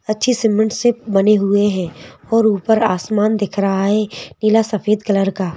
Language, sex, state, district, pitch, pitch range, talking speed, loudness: Hindi, female, Madhya Pradesh, Bhopal, 210 Hz, 195-220 Hz, 170 wpm, -16 LUFS